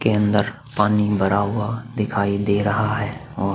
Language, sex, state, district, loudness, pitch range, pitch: Hindi, male, Chhattisgarh, Sukma, -21 LUFS, 100-110 Hz, 105 Hz